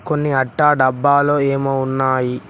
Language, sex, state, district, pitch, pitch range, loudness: Telugu, male, Telangana, Mahabubabad, 135 Hz, 130-145 Hz, -16 LUFS